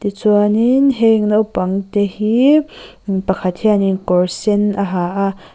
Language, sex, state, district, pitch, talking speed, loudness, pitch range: Mizo, female, Mizoram, Aizawl, 205 Hz, 130 wpm, -15 LUFS, 190-215 Hz